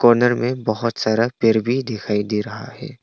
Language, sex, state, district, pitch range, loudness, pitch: Hindi, male, Arunachal Pradesh, Longding, 110-120 Hz, -20 LUFS, 115 Hz